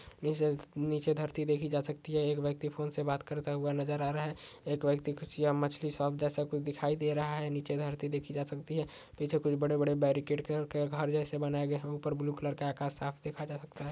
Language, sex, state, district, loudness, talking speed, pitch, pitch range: Hindi, male, Maharashtra, Pune, -35 LUFS, 235 wpm, 145 Hz, 145-150 Hz